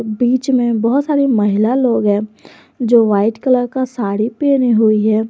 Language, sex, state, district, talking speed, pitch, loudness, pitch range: Hindi, female, Jharkhand, Garhwa, 170 wpm, 235 Hz, -14 LUFS, 215-255 Hz